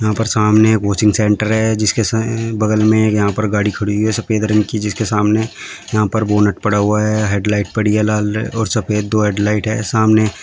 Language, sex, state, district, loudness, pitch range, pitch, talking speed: Hindi, male, Uttar Pradesh, Shamli, -15 LUFS, 105-110 Hz, 110 Hz, 230 wpm